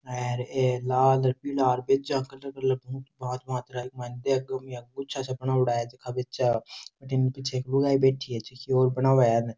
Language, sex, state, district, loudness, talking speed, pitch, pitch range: Rajasthani, male, Rajasthan, Churu, -27 LUFS, 150 wpm, 130 Hz, 125-135 Hz